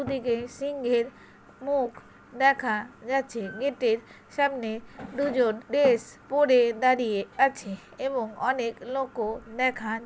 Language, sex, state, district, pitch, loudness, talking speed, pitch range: Bengali, female, West Bengal, Paschim Medinipur, 245 Hz, -27 LUFS, 100 wpm, 230-270 Hz